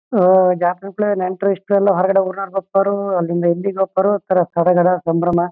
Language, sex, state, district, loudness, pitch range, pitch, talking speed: Kannada, male, Karnataka, Shimoga, -17 LUFS, 175-195 Hz, 190 Hz, 65 wpm